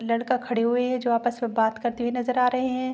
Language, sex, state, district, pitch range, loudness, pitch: Hindi, female, Chhattisgarh, Korba, 235-255 Hz, -25 LUFS, 245 Hz